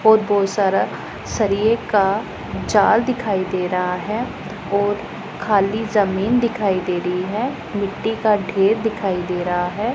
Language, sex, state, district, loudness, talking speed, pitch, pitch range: Hindi, female, Punjab, Pathankot, -20 LUFS, 145 wpm, 205 Hz, 190-220 Hz